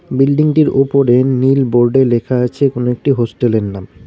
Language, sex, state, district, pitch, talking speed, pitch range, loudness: Bengali, male, West Bengal, Cooch Behar, 130 Hz, 190 wpm, 120-135 Hz, -13 LUFS